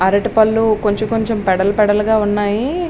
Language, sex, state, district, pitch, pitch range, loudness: Telugu, female, Andhra Pradesh, Srikakulam, 215 Hz, 205-220 Hz, -15 LUFS